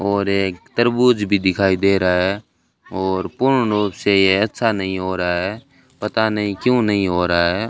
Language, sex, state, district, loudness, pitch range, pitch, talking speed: Hindi, male, Rajasthan, Bikaner, -18 LUFS, 95-110 Hz, 100 Hz, 185 wpm